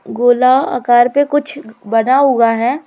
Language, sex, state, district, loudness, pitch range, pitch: Hindi, female, Madhya Pradesh, Umaria, -12 LUFS, 240-280 Hz, 250 Hz